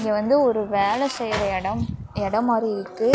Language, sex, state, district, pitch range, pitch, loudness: Tamil, female, Tamil Nadu, Namakkal, 200-230 Hz, 215 Hz, -23 LUFS